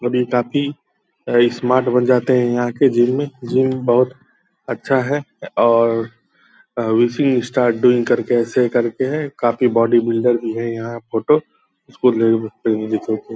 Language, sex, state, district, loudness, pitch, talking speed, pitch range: Hindi, male, Bihar, Purnia, -17 LUFS, 120 Hz, 150 wpm, 115-130 Hz